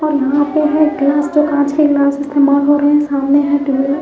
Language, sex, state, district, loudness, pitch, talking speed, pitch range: Hindi, female, Bihar, Katihar, -13 LUFS, 290 Hz, 240 wpm, 280-295 Hz